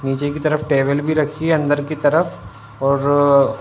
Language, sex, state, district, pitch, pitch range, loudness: Hindi, male, Uttar Pradesh, Ghazipur, 145 Hz, 135-150 Hz, -17 LUFS